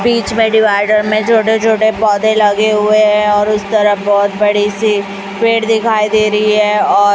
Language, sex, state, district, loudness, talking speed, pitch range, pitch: Hindi, male, Chhattisgarh, Raipur, -12 LUFS, 185 wpm, 205-220 Hz, 215 Hz